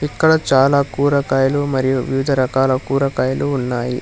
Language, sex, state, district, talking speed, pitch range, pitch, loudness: Telugu, male, Telangana, Hyderabad, 120 wpm, 130-140 Hz, 135 Hz, -17 LUFS